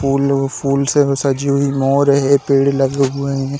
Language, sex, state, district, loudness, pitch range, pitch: Hindi, male, Chhattisgarh, Balrampur, -15 LUFS, 135-140 Hz, 140 Hz